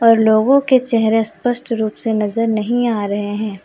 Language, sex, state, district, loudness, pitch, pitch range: Hindi, female, Jharkhand, Deoghar, -16 LUFS, 225 Hz, 215-240 Hz